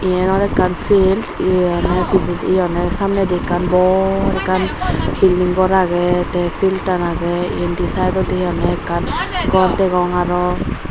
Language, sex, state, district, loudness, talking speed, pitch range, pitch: Chakma, female, Tripura, Unakoti, -16 LUFS, 140 wpm, 175-190 Hz, 185 Hz